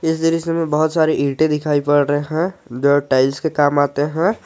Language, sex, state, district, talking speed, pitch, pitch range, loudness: Hindi, male, Jharkhand, Garhwa, 215 wpm, 150 Hz, 145-160 Hz, -17 LUFS